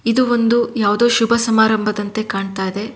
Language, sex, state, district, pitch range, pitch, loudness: Kannada, female, Karnataka, Shimoga, 205-235 Hz, 220 Hz, -16 LUFS